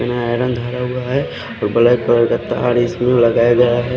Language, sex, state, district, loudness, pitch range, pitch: Hindi, male, Odisha, Khordha, -16 LUFS, 120-125 Hz, 120 Hz